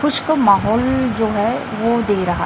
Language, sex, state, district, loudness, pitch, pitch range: Hindi, female, Chhattisgarh, Raipur, -17 LUFS, 225 Hz, 205-260 Hz